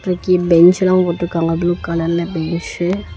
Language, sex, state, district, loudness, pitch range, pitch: Tamil, female, Tamil Nadu, Namakkal, -16 LUFS, 170-180 Hz, 175 Hz